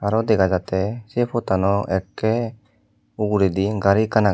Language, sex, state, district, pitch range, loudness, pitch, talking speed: Chakma, male, Tripura, Dhalai, 95-110 Hz, -21 LUFS, 105 Hz, 140 wpm